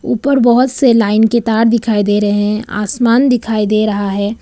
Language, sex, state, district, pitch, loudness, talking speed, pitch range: Hindi, female, Arunachal Pradesh, Papum Pare, 225 Hz, -13 LUFS, 205 wpm, 210-240 Hz